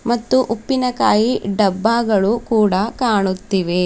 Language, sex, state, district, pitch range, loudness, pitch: Kannada, female, Karnataka, Bidar, 195-240 Hz, -17 LUFS, 220 Hz